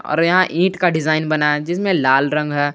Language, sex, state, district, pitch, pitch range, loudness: Hindi, male, Jharkhand, Garhwa, 155 Hz, 150-180 Hz, -17 LUFS